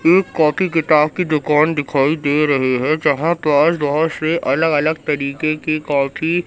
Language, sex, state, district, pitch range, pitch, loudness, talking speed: Hindi, male, Madhya Pradesh, Katni, 145-160 Hz, 155 Hz, -17 LUFS, 175 wpm